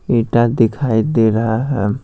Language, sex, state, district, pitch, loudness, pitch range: Hindi, male, Bihar, Patna, 115 Hz, -16 LUFS, 110-120 Hz